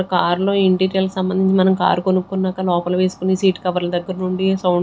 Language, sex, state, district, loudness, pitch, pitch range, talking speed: Telugu, female, Andhra Pradesh, Sri Satya Sai, -18 LUFS, 185 Hz, 180-190 Hz, 185 wpm